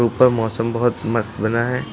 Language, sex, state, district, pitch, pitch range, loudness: Hindi, male, Uttar Pradesh, Lucknow, 115 Hz, 115-120 Hz, -19 LUFS